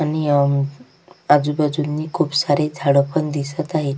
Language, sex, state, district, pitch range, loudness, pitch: Marathi, female, Maharashtra, Sindhudurg, 140-155 Hz, -19 LUFS, 150 Hz